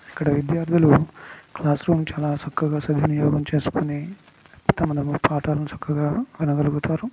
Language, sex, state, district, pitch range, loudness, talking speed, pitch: Telugu, male, Andhra Pradesh, Guntur, 145-160 Hz, -22 LUFS, 90 wpm, 150 Hz